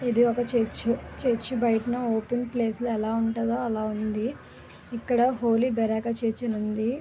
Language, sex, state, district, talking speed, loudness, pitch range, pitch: Telugu, female, Andhra Pradesh, Visakhapatnam, 135 wpm, -26 LUFS, 225-245 Hz, 235 Hz